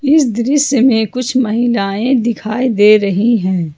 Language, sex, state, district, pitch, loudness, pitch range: Hindi, female, Jharkhand, Ranchi, 235 Hz, -13 LUFS, 210-255 Hz